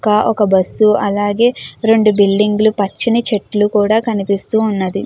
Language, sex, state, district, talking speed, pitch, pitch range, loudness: Telugu, female, Andhra Pradesh, Chittoor, 130 wpm, 210 Hz, 200-220 Hz, -14 LUFS